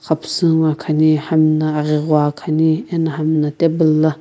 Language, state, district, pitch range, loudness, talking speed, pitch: Sumi, Nagaland, Kohima, 155-160 Hz, -16 LUFS, 170 wpm, 155 Hz